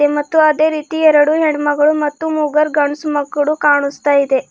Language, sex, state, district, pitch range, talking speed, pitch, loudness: Kannada, female, Karnataka, Bidar, 290-310 Hz, 160 wpm, 300 Hz, -14 LUFS